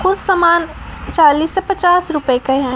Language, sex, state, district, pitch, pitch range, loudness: Hindi, male, Chhattisgarh, Raipur, 335 Hz, 290-370 Hz, -14 LUFS